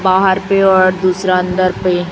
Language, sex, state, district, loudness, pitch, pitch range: Hindi, female, Chhattisgarh, Raipur, -13 LUFS, 185 Hz, 185-190 Hz